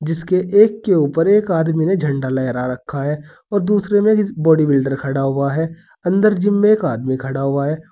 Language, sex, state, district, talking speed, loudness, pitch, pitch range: Hindi, male, Uttar Pradesh, Saharanpur, 205 wpm, -17 LUFS, 160 Hz, 140-200 Hz